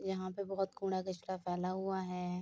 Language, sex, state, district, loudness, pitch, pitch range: Hindi, female, Bihar, Saharsa, -39 LUFS, 185 Hz, 180-190 Hz